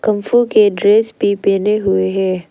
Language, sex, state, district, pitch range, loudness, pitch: Hindi, female, Arunachal Pradesh, Longding, 195-215 Hz, -14 LUFS, 205 Hz